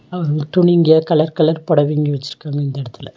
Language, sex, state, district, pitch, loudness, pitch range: Tamil, female, Tamil Nadu, Nilgiris, 150 Hz, -16 LUFS, 145-160 Hz